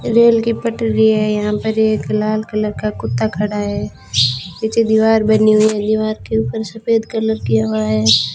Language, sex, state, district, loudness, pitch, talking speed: Hindi, female, Rajasthan, Bikaner, -16 LUFS, 215 Hz, 185 wpm